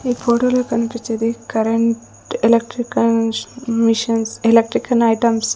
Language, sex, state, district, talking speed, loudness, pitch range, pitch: Telugu, female, Andhra Pradesh, Sri Satya Sai, 110 wpm, -17 LUFS, 230-235 Hz, 230 Hz